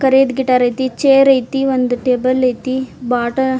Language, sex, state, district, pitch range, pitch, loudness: Kannada, female, Karnataka, Dharwad, 250-265 Hz, 260 Hz, -15 LUFS